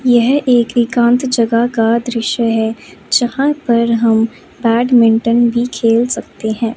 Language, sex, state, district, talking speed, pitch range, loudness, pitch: Hindi, female, Chandigarh, Chandigarh, 135 wpm, 230-245 Hz, -14 LUFS, 235 Hz